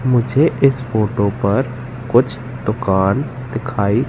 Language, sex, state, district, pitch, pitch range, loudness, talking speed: Hindi, male, Madhya Pradesh, Katni, 120 Hz, 105-130 Hz, -17 LUFS, 105 wpm